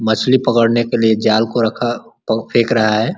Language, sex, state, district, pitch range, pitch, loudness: Hindi, male, Uttar Pradesh, Ghazipur, 110-120 Hz, 115 Hz, -15 LUFS